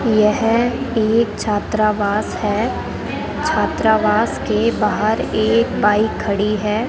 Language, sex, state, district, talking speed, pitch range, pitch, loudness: Hindi, male, Rajasthan, Bikaner, 95 wpm, 210-230 Hz, 215 Hz, -18 LUFS